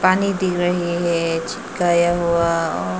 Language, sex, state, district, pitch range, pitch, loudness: Hindi, female, Arunachal Pradesh, Papum Pare, 165-175 Hz, 175 Hz, -19 LUFS